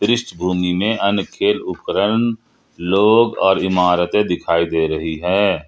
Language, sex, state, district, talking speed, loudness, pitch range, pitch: Hindi, male, Jharkhand, Ranchi, 115 wpm, -17 LUFS, 85-105 Hz, 90 Hz